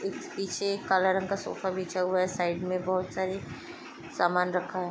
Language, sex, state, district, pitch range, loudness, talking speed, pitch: Hindi, female, Bihar, Lakhisarai, 180-190 Hz, -29 LUFS, 205 wpm, 185 Hz